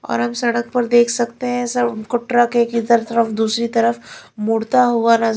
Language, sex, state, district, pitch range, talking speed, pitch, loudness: Hindi, female, Chhattisgarh, Raipur, 230-240 Hz, 200 wpm, 235 Hz, -17 LUFS